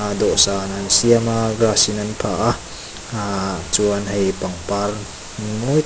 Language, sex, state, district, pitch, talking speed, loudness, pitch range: Mizo, male, Mizoram, Aizawl, 105 Hz, 155 wpm, -18 LUFS, 100-110 Hz